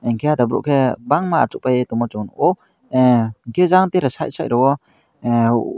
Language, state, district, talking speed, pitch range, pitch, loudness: Kokborok, Tripura, Dhalai, 145 wpm, 115-150 Hz, 125 Hz, -18 LUFS